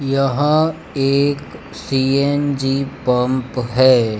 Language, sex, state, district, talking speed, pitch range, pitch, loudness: Hindi, female, Gujarat, Gandhinagar, 70 wpm, 125-140 Hz, 135 Hz, -17 LUFS